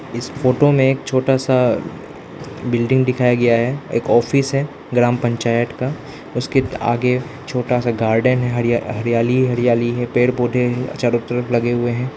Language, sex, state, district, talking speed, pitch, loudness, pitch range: Hindi, male, Arunachal Pradesh, Lower Dibang Valley, 160 wpm, 125 Hz, -18 LUFS, 120-130 Hz